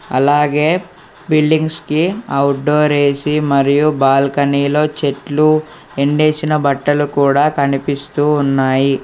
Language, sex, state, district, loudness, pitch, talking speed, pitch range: Telugu, male, Telangana, Hyderabad, -14 LUFS, 145 Hz, 95 wpm, 140-150 Hz